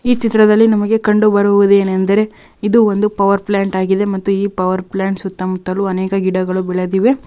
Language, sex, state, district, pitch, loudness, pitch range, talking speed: Kannada, female, Karnataka, Raichur, 200 Hz, -14 LUFS, 190-210 Hz, 165 wpm